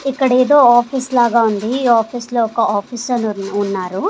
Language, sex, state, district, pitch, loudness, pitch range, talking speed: Telugu, female, Andhra Pradesh, Sri Satya Sai, 240 Hz, -15 LUFS, 210-250 Hz, 160 wpm